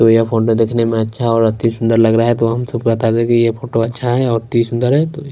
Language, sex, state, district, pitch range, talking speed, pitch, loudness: Hindi, male, Punjab, Kapurthala, 115-120 Hz, 350 wpm, 115 Hz, -15 LUFS